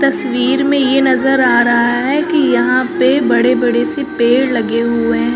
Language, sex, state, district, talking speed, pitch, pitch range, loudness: Hindi, female, Uttar Pradesh, Lucknow, 190 wpm, 265 Hz, 240-285 Hz, -13 LUFS